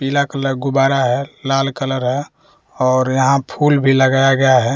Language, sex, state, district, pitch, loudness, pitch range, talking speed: Hindi, male, Bihar, West Champaran, 135 Hz, -16 LUFS, 130-140 Hz, 175 wpm